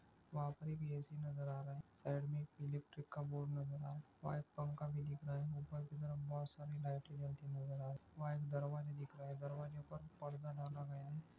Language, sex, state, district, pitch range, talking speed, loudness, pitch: Hindi, male, Maharashtra, Chandrapur, 140-150 Hz, 230 wpm, -47 LUFS, 145 Hz